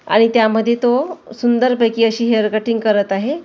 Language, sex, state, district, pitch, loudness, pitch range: Marathi, female, Maharashtra, Gondia, 230 Hz, -16 LUFS, 220-240 Hz